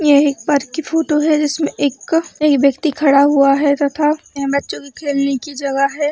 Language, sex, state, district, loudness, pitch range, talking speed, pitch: Hindi, female, Chhattisgarh, Bilaspur, -16 LUFS, 280-300 Hz, 195 wpm, 285 Hz